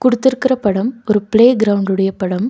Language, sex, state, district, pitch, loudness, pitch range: Tamil, female, Tamil Nadu, Nilgiris, 215 Hz, -15 LUFS, 195-250 Hz